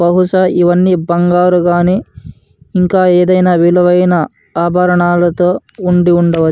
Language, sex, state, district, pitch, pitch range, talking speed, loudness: Telugu, male, Andhra Pradesh, Anantapur, 180 Hz, 175-180 Hz, 90 wpm, -11 LUFS